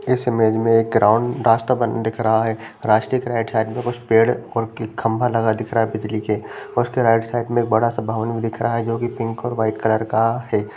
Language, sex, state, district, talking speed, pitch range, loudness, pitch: Hindi, male, Uttar Pradesh, Jalaun, 245 wpm, 110-120 Hz, -20 LUFS, 115 Hz